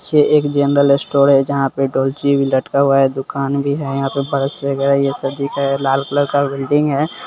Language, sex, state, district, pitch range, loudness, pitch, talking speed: Hindi, male, Bihar, Sitamarhi, 135-140 Hz, -16 LUFS, 140 Hz, 240 wpm